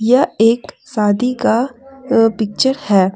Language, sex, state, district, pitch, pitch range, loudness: Hindi, female, Jharkhand, Deoghar, 230 Hz, 215-260 Hz, -15 LUFS